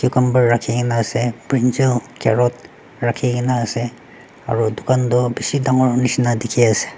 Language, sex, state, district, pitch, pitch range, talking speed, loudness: Nagamese, male, Nagaland, Dimapur, 120 Hz, 120-125 Hz, 120 wpm, -18 LUFS